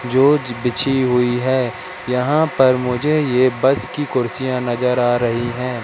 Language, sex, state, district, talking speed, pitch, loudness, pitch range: Hindi, male, Madhya Pradesh, Katni, 165 wpm, 125 Hz, -17 LUFS, 125-135 Hz